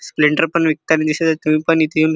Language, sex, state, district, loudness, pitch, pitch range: Marathi, male, Maharashtra, Chandrapur, -16 LUFS, 160 Hz, 155-160 Hz